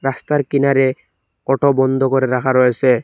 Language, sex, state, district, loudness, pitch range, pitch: Bengali, male, Assam, Hailakandi, -16 LUFS, 130-140 Hz, 135 Hz